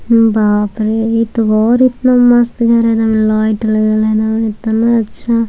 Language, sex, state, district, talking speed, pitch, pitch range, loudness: Maithili, female, Bihar, Samastipur, 140 wpm, 225 Hz, 215-235 Hz, -12 LUFS